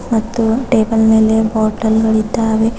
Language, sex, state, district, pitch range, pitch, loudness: Kannada, female, Karnataka, Bidar, 220-225 Hz, 220 Hz, -14 LUFS